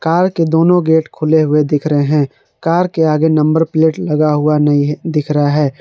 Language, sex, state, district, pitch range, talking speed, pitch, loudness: Hindi, male, Jharkhand, Garhwa, 150-165 Hz, 205 wpm, 155 Hz, -13 LUFS